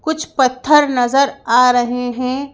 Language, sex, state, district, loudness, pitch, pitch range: Hindi, female, Madhya Pradesh, Bhopal, -15 LUFS, 260 Hz, 245-285 Hz